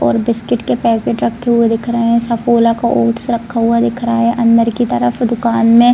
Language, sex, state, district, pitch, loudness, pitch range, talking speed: Hindi, female, Bihar, Saran, 230 Hz, -14 LUFS, 230-235 Hz, 220 wpm